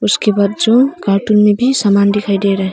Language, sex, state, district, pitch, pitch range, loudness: Hindi, female, Arunachal Pradesh, Longding, 205 Hz, 200-215 Hz, -12 LUFS